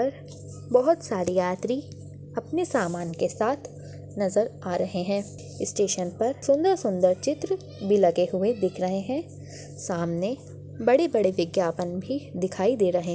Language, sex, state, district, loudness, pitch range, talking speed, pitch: Hindi, female, Chhattisgarh, Bastar, -26 LUFS, 180-250 Hz, 135 wpm, 190 Hz